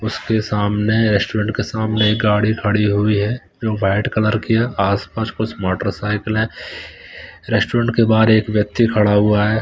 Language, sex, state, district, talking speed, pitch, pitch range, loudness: Hindi, male, Bihar, Katihar, 175 wpm, 110 Hz, 105-110 Hz, -17 LUFS